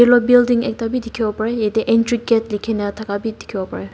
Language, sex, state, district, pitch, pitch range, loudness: Nagamese, female, Nagaland, Dimapur, 225 Hz, 210-240 Hz, -18 LUFS